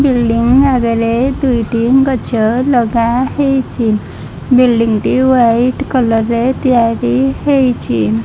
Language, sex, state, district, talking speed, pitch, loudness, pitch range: Odia, female, Odisha, Malkangiri, 85 wpm, 240 Hz, -12 LUFS, 230-260 Hz